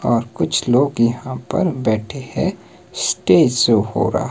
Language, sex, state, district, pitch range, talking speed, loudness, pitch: Hindi, male, Himachal Pradesh, Shimla, 115-135 Hz, 155 wpm, -18 LUFS, 120 Hz